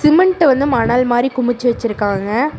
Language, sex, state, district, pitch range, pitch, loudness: Tamil, female, Tamil Nadu, Namakkal, 230-280 Hz, 245 Hz, -15 LUFS